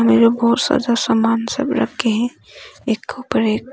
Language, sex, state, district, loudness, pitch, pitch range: Hindi, female, Arunachal Pradesh, Longding, -18 LUFS, 235 Hz, 230-265 Hz